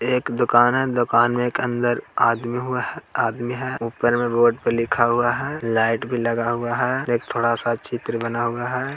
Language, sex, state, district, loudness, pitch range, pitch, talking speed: Hindi, male, Bihar, Jahanabad, -21 LUFS, 115-125 Hz, 120 Hz, 200 wpm